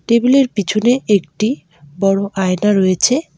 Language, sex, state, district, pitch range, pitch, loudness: Bengali, female, West Bengal, Alipurduar, 190-240 Hz, 205 Hz, -15 LUFS